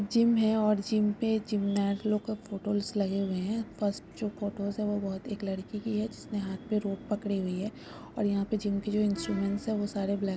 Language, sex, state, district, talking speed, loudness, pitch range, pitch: Hindi, female, West Bengal, Purulia, 235 wpm, -31 LUFS, 200-215 Hz, 205 Hz